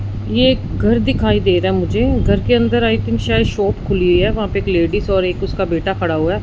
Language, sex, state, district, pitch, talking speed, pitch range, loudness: Hindi, male, Punjab, Fazilka, 115 Hz, 260 wpm, 105-165 Hz, -16 LUFS